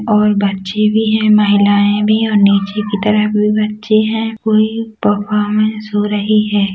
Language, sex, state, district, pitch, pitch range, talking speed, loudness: Hindi, female, Chhattisgarh, Rajnandgaon, 210 Hz, 205-215 Hz, 170 wpm, -13 LUFS